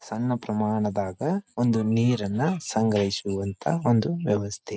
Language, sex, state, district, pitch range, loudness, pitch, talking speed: Kannada, male, Karnataka, Dharwad, 100-125 Hz, -25 LUFS, 110 Hz, 90 wpm